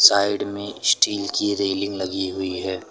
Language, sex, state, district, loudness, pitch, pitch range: Hindi, male, Uttar Pradesh, Lucknow, -22 LUFS, 100 Hz, 95-100 Hz